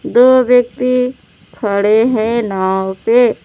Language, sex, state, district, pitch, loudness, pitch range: Hindi, female, Jharkhand, Palamu, 235 Hz, -13 LUFS, 210-250 Hz